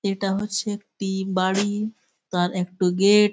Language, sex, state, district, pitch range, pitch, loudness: Bengali, male, West Bengal, Malda, 190-210 Hz, 200 Hz, -23 LUFS